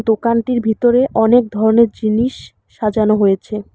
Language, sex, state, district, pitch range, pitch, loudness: Bengali, female, West Bengal, Alipurduar, 215-235 Hz, 220 Hz, -15 LUFS